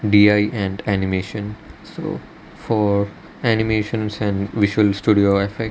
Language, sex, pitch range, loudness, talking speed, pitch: English, male, 100-110 Hz, -19 LUFS, 105 wpm, 105 Hz